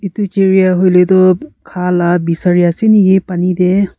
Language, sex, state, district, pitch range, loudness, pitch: Nagamese, female, Nagaland, Kohima, 180-190 Hz, -11 LUFS, 185 Hz